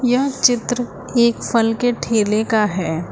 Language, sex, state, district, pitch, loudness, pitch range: Hindi, female, Uttar Pradesh, Lucknow, 230 Hz, -18 LUFS, 215-245 Hz